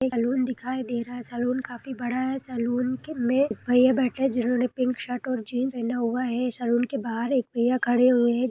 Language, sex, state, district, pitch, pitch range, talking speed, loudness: Hindi, female, Bihar, Purnia, 250 Hz, 240-255 Hz, 225 wpm, -25 LUFS